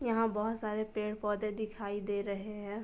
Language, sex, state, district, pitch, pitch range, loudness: Hindi, female, Uttar Pradesh, Jalaun, 210 Hz, 205-215 Hz, -36 LUFS